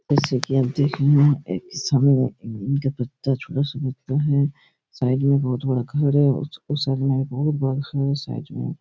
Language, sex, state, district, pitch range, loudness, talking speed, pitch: Hindi, male, Chhattisgarh, Raigarh, 135-145 Hz, -22 LUFS, 220 wpm, 140 Hz